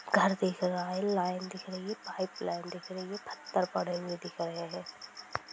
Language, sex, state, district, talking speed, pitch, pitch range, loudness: Hindi, female, Bihar, Sitamarhi, 195 wpm, 180 Hz, 170-185 Hz, -35 LUFS